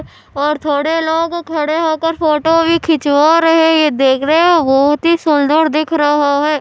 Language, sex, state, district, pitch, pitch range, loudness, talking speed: Hindi, male, Andhra Pradesh, Anantapur, 310 Hz, 295-330 Hz, -13 LUFS, 190 wpm